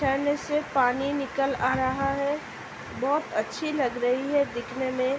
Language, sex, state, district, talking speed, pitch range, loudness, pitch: Hindi, female, Uttar Pradesh, Budaun, 185 wpm, 260-285 Hz, -27 LUFS, 270 Hz